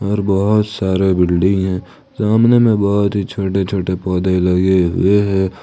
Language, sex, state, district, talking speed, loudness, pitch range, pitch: Hindi, male, Jharkhand, Ranchi, 160 wpm, -15 LUFS, 95-100 Hz, 95 Hz